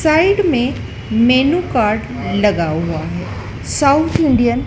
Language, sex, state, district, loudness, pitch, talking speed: Hindi, female, Madhya Pradesh, Dhar, -15 LUFS, 240 Hz, 130 wpm